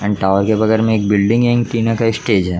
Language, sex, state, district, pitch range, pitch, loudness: Hindi, male, Jharkhand, Jamtara, 100-115 Hz, 110 Hz, -15 LUFS